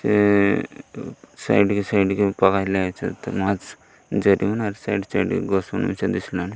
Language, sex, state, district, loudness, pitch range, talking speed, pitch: Odia, male, Odisha, Malkangiri, -21 LUFS, 95-100 Hz, 165 wpm, 100 Hz